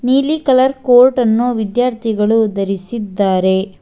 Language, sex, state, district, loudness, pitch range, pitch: Kannada, female, Karnataka, Bangalore, -14 LUFS, 200-250 Hz, 230 Hz